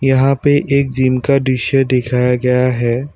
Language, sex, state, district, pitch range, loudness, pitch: Hindi, male, Assam, Kamrup Metropolitan, 125-135 Hz, -14 LUFS, 130 Hz